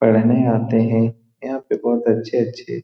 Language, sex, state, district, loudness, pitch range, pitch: Hindi, male, Bihar, Saran, -19 LUFS, 115-120 Hz, 115 Hz